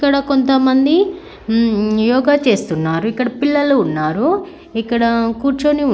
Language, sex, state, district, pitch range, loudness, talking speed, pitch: Telugu, female, Andhra Pradesh, Srikakulam, 225-290 Hz, -15 LUFS, 100 wpm, 260 Hz